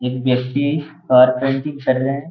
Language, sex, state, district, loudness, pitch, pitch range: Hindi, male, Bihar, Gaya, -17 LUFS, 135 Hz, 125-145 Hz